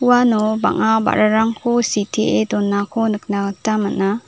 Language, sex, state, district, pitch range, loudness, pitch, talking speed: Garo, female, Meghalaya, South Garo Hills, 200-225 Hz, -17 LUFS, 215 Hz, 110 wpm